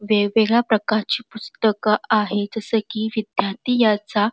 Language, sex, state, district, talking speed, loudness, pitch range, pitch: Marathi, female, Karnataka, Belgaum, 125 wpm, -20 LUFS, 210-225 Hz, 215 Hz